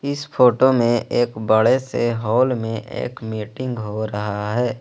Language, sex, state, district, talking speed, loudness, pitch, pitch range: Hindi, male, Jharkhand, Ranchi, 160 wpm, -20 LUFS, 120 Hz, 110-125 Hz